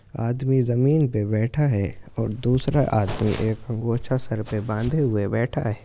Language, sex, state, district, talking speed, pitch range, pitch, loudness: Hindi, male, Uttar Pradesh, Jyotiba Phule Nagar, 165 wpm, 110-130 Hz, 115 Hz, -23 LUFS